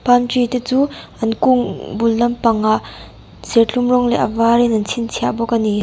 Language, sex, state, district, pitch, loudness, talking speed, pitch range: Mizo, female, Mizoram, Aizawl, 230 Hz, -16 LUFS, 185 wpm, 220-245 Hz